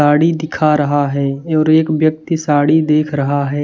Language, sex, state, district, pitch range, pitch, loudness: Hindi, male, Chhattisgarh, Raipur, 145-155 Hz, 150 Hz, -14 LUFS